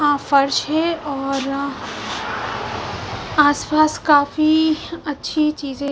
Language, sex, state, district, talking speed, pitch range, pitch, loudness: Hindi, female, Punjab, Fazilka, 80 wpm, 280-310 Hz, 295 Hz, -19 LUFS